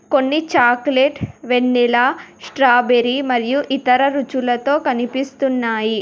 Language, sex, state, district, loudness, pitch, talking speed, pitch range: Telugu, female, Telangana, Hyderabad, -16 LUFS, 260 Hz, 80 wpm, 245-275 Hz